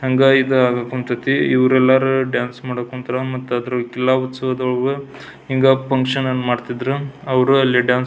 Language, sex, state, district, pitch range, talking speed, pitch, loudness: Kannada, male, Karnataka, Belgaum, 125-135 Hz, 150 wpm, 130 Hz, -18 LUFS